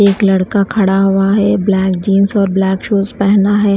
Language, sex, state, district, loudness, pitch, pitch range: Hindi, female, Himachal Pradesh, Shimla, -12 LUFS, 200 Hz, 195-200 Hz